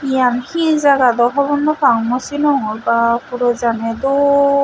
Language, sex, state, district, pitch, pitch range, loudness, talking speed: Chakma, female, Tripura, West Tripura, 260 Hz, 235-285 Hz, -15 LUFS, 130 wpm